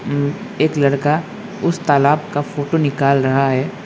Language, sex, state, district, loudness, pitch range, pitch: Hindi, male, West Bengal, Alipurduar, -17 LUFS, 140-165 Hz, 145 Hz